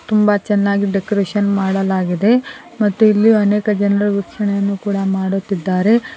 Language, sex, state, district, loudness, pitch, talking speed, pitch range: Kannada, female, Karnataka, Koppal, -16 LUFS, 200 Hz, 105 wpm, 195-210 Hz